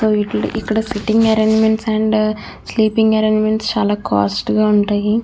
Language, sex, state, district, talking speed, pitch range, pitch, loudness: Telugu, female, Andhra Pradesh, Krishna, 135 wpm, 210-220 Hz, 215 Hz, -16 LUFS